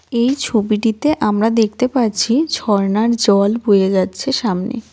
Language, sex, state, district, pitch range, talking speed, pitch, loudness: Bengali, female, West Bengal, Cooch Behar, 205-245 Hz, 120 wpm, 225 Hz, -16 LUFS